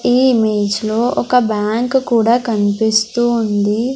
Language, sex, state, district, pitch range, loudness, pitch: Telugu, female, Andhra Pradesh, Sri Satya Sai, 215-240 Hz, -15 LUFS, 225 Hz